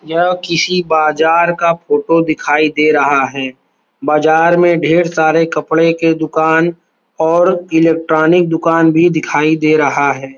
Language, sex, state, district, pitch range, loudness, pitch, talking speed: Hindi, male, Uttar Pradesh, Varanasi, 155-170 Hz, -12 LUFS, 160 Hz, 140 wpm